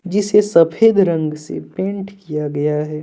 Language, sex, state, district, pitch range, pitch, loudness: Hindi, male, Jharkhand, Deoghar, 150-200 Hz, 170 Hz, -16 LUFS